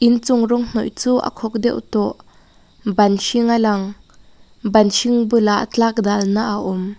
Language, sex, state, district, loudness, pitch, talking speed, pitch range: Mizo, female, Mizoram, Aizawl, -17 LUFS, 225 Hz, 165 wpm, 205-235 Hz